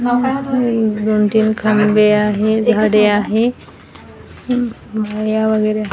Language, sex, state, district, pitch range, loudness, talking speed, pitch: Marathi, female, Maharashtra, Washim, 210-235 Hz, -15 LUFS, 100 wpm, 215 Hz